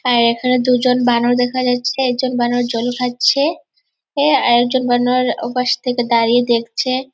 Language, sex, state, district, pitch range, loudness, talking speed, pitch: Bengali, female, West Bengal, Purulia, 240-255 Hz, -16 LUFS, 170 wpm, 250 Hz